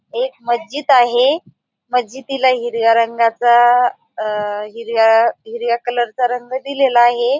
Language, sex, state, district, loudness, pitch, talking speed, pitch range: Marathi, female, Maharashtra, Aurangabad, -16 LUFS, 240 Hz, 115 wpm, 230-265 Hz